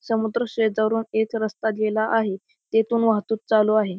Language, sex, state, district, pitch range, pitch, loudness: Marathi, male, Maharashtra, Pune, 215-225 Hz, 220 Hz, -22 LUFS